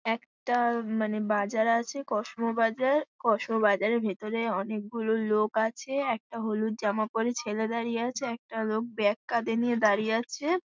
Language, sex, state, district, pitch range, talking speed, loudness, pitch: Bengali, female, West Bengal, Paschim Medinipur, 215-235 Hz, 150 wpm, -29 LUFS, 225 Hz